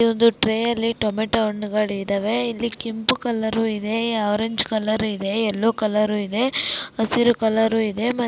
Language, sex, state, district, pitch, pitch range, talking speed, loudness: Kannada, female, Karnataka, Dakshina Kannada, 225 Hz, 215-230 Hz, 140 wpm, -21 LUFS